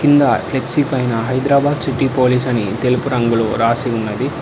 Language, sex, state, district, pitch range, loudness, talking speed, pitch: Telugu, male, Telangana, Hyderabad, 115-140 Hz, -16 LUFS, 150 wpm, 125 Hz